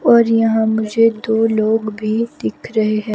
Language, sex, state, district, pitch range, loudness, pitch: Hindi, female, Himachal Pradesh, Shimla, 215-225 Hz, -16 LUFS, 220 Hz